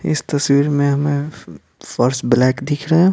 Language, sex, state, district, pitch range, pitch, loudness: Hindi, male, Bihar, Patna, 130-150 Hz, 145 Hz, -17 LUFS